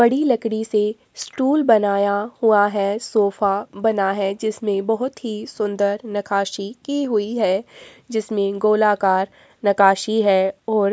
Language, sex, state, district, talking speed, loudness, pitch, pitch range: Hindi, female, Uttarakhand, Tehri Garhwal, 135 wpm, -20 LUFS, 210 Hz, 200-225 Hz